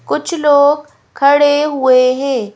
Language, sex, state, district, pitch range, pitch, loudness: Hindi, female, Madhya Pradesh, Bhopal, 260-290 Hz, 285 Hz, -12 LUFS